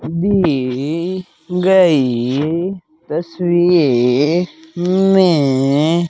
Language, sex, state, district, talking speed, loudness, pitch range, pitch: Hindi, male, Rajasthan, Bikaner, 50 wpm, -15 LUFS, 145-180 Hz, 170 Hz